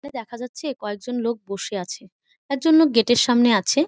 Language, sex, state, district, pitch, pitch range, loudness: Bengali, female, West Bengal, Malda, 240 Hz, 210-275 Hz, -21 LUFS